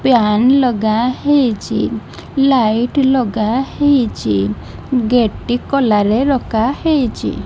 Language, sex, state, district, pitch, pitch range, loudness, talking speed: Odia, female, Odisha, Malkangiri, 245 Hz, 215-270 Hz, -15 LUFS, 105 wpm